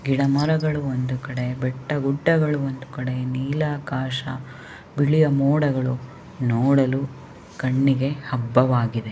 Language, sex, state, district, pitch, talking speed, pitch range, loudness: Kannada, female, Karnataka, Shimoga, 135 Hz, 80 wpm, 130-145 Hz, -22 LUFS